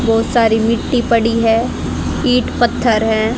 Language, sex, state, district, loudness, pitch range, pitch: Hindi, female, Haryana, Rohtak, -15 LUFS, 225-240 Hz, 230 Hz